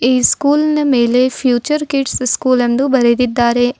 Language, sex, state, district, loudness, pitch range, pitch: Kannada, female, Karnataka, Bidar, -14 LUFS, 245-275 Hz, 255 Hz